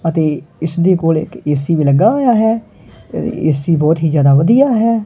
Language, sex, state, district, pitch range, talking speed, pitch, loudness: Punjabi, male, Punjab, Kapurthala, 150-220 Hz, 180 wpm, 165 Hz, -13 LUFS